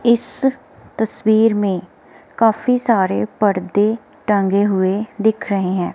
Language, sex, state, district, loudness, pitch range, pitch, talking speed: Hindi, female, Himachal Pradesh, Shimla, -17 LUFS, 195-230 Hz, 210 Hz, 110 wpm